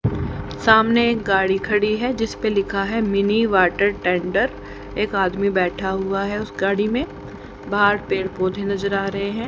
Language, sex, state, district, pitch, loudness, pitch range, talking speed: Hindi, female, Haryana, Charkhi Dadri, 200 Hz, -20 LUFS, 195-215 Hz, 165 wpm